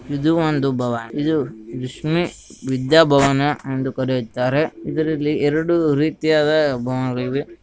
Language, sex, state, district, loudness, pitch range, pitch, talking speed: Kannada, male, Karnataka, Gulbarga, -19 LUFS, 130-155 Hz, 145 Hz, 100 wpm